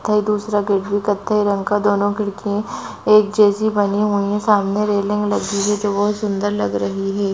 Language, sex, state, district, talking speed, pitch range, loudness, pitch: Hindi, female, Maharashtra, Aurangabad, 195 wpm, 200-210 Hz, -18 LUFS, 205 Hz